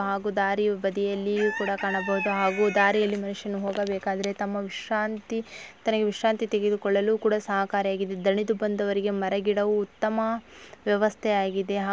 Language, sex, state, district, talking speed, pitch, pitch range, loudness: Kannada, female, Karnataka, Raichur, 120 wpm, 205 Hz, 200-210 Hz, -26 LUFS